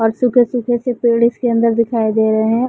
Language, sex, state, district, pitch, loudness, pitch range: Hindi, female, Chhattisgarh, Bilaspur, 235 Hz, -15 LUFS, 225-245 Hz